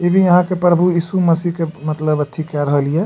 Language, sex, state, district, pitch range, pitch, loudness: Maithili, male, Bihar, Supaul, 155-180 Hz, 170 Hz, -16 LUFS